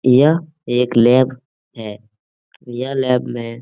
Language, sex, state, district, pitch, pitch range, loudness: Hindi, male, Bihar, Jahanabad, 125 Hz, 115-130 Hz, -16 LUFS